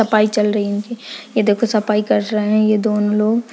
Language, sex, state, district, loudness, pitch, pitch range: Hindi, female, Uttarakhand, Uttarkashi, -17 LUFS, 215 Hz, 210-220 Hz